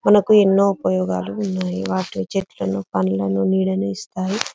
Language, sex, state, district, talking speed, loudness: Telugu, female, Telangana, Karimnagar, 130 wpm, -20 LUFS